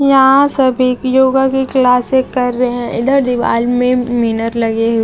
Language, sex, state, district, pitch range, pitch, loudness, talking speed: Hindi, female, Chhattisgarh, Raipur, 240-265 Hz, 250 Hz, -13 LUFS, 155 wpm